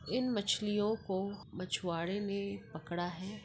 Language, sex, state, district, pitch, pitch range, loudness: Hindi, female, Uttar Pradesh, Jyotiba Phule Nagar, 200 Hz, 175-210 Hz, -37 LUFS